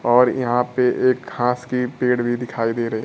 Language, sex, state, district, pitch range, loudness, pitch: Hindi, male, Bihar, Kaimur, 120-125 Hz, -20 LUFS, 125 Hz